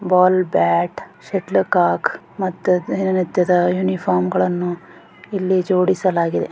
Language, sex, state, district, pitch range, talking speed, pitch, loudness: Kannada, female, Karnataka, Gulbarga, 170-185 Hz, 100 wpm, 180 Hz, -18 LUFS